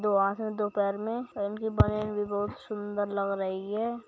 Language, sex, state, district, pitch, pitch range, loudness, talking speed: Hindi, male, Uttar Pradesh, Hamirpur, 205 Hz, 200-215 Hz, -30 LUFS, 220 wpm